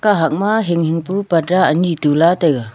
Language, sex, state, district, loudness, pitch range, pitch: Wancho, female, Arunachal Pradesh, Longding, -15 LUFS, 160-185 Hz, 170 Hz